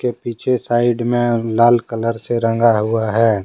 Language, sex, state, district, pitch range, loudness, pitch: Hindi, male, Jharkhand, Deoghar, 115-120 Hz, -17 LUFS, 115 Hz